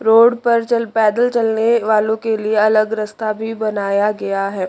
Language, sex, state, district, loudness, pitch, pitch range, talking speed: Hindi, female, Chandigarh, Chandigarh, -16 LUFS, 220 Hz, 210-230 Hz, 180 wpm